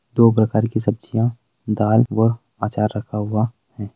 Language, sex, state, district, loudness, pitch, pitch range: Hindi, male, Uttar Pradesh, Budaun, -20 LUFS, 110 Hz, 105-115 Hz